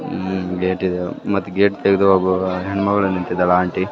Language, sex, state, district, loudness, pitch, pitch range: Kannada, male, Karnataka, Raichur, -18 LUFS, 95 Hz, 90-100 Hz